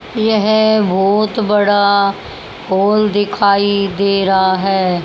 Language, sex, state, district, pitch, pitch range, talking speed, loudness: Hindi, male, Haryana, Rohtak, 200 Hz, 195-210 Hz, 95 wpm, -13 LUFS